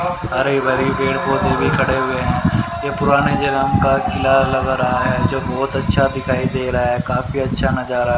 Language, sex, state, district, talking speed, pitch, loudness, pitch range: Hindi, male, Haryana, Rohtak, 190 wpm, 130 Hz, -17 LUFS, 125-135 Hz